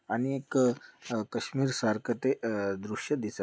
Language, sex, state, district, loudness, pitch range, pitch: Marathi, male, Maharashtra, Dhule, -31 LUFS, 110-135 Hz, 120 Hz